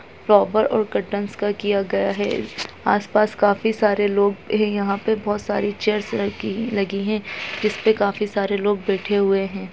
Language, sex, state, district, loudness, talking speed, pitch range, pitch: Hindi, female, Uttarakhand, Tehri Garhwal, -21 LUFS, 160 wpm, 200-210 Hz, 205 Hz